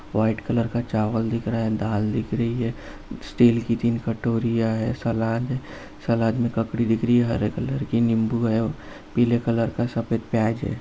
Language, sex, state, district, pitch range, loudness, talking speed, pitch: Hindi, male, Uttar Pradesh, Jalaun, 115-120 Hz, -23 LUFS, 195 wpm, 115 Hz